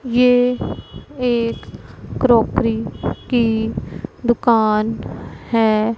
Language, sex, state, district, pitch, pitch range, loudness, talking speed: Hindi, female, Punjab, Pathankot, 235 Hz, 225-245 Hz, -18 LUFS, 60 wpm